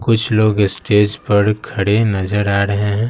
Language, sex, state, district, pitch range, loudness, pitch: Hindi, male, Bihar, Patna, 100-110 Hz, -15 LUFS, 105 Hz